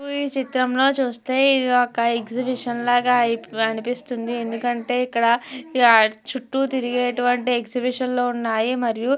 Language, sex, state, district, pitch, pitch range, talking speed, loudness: Telugu, female, Andhra Pradesh, Chittoor, 245 Hz, 235-255 Hz, 110 wpm, -21 LUFS